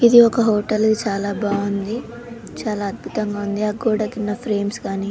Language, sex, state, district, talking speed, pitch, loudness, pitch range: Telugu, female, Telangana, Nalgonda, 165 wpm, 210 Hz, -20 LUFS, 205-225 Hz